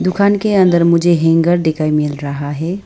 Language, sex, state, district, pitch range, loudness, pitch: Hindi, female, Arunachal Pradesh, Lower Dibang Valley, 155-185 Hz, -14 LUFS, 170 Hz